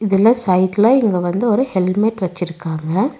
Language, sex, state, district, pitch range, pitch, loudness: Tamil, female, Tamil Nadu, Nilgiris, 180-225 Hz, 195 Hz, -16 LUFS